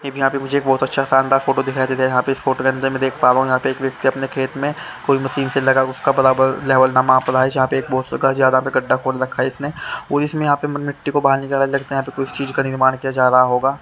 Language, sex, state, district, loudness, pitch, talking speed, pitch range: Hindi, male, Haryana, Charkhi Dadri, -17 LUFS, 135 Hz, 280 wpm, 130-135 Hz